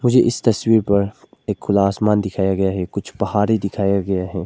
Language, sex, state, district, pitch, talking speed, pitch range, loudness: Hindi, male, Arunachal Pradesh, Lower Dibang Valley, 100 Hz, 200 wpm, 95-110 Hz, -19 LUFS